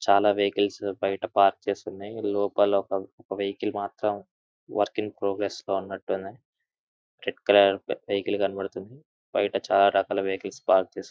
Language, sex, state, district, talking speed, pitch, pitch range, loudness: Telugu, male, Andhra Pradesh, Anantapur, 135 wpm, 100 Hz, 95-100 Hz, -26 LUFS